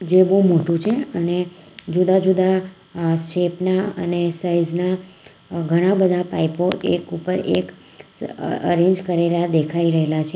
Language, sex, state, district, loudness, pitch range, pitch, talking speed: Gujarati, female, Gujarat, Valsad, -19 LUFS, 170-185 Hz, 175 Hz, 140 wpm